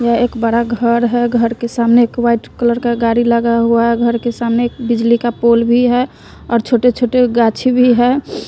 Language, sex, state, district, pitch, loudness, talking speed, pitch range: Hindi, female, Bihar, West Champaran, 235 Hz, -14 LUFS, 210 wpm, 235-240 Hz